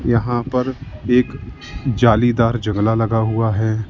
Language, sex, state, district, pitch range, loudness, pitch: Hindi, male, Uttar Pradesh, Lalitpur, 110-120 Hz, -18 LUFS, 115 Hz